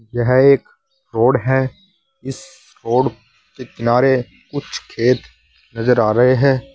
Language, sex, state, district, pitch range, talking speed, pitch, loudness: Hindi, male, Uttar Pradesh, Saharanpur, 120-145 Hz, 125 wpm, 130 Hz, -16 LUFS